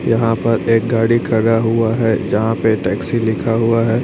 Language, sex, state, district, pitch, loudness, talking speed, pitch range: Hindi, male, Chhattisgarh, Raipur, 115 Hz, -16 LUFS, 195 wpm, 110-115 Hz